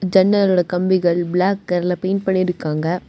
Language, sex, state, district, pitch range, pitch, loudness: Tamil, female, Tamil Nadu, Kanyakumari, 175-190 Hz, 180 Hz, -18 LUFS